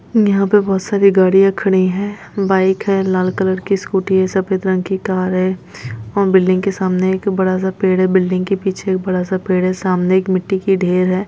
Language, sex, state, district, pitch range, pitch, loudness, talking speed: Hindi, female, Chhattisgarh, Rajnandgaon, 185-195 Hz, 190 Hz, -15 LUFS, 220 wpm